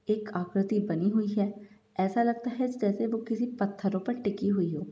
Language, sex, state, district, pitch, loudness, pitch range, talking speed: Hindi, female, Bihar, East Champaran, 205 Hz, -30 LUFS, 195-230 Hz, 195 wpm